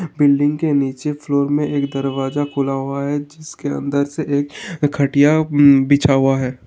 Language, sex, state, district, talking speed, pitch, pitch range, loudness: Hindi, male, Uttar Pradesh, Hamirpur, 160 wpm, 140 Hz, 140-145 Hz, -17 LUFS